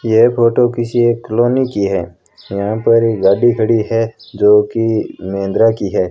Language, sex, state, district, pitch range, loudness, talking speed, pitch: Hindi, female, Rajasthan, Bikaner, 105-120 Hz, -14 LUFS, 165 wpm, 115 Hz